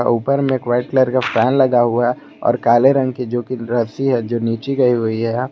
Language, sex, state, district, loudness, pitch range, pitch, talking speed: Hindi, male, Jharkhand, Garhwa, -17 LUFS, 120-130 Hz, 120 Hz, 240 wpm